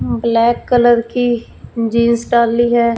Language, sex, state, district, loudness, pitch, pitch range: Hindi, female, Punjab, Fazilka, -14 LUFS, 235 Hz, 230-240 Hz